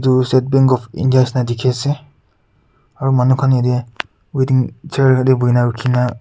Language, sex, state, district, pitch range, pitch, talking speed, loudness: Nagamese, male, Nagaland, Kohima, 125-130 Hz, 130 Hz, 175 wpm, -15 LUFS